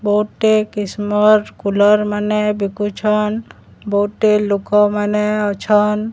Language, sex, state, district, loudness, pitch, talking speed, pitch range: Odia, male, Odisha, Sambalpur, -16 LUFS, 210 Hz, 80 wpm, 205-210 Hz